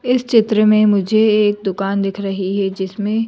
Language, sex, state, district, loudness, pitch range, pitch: Hindi, female, Madhya Pradesh, Bhopal, -16 LUFS, 195-220 Hz, 205 Hz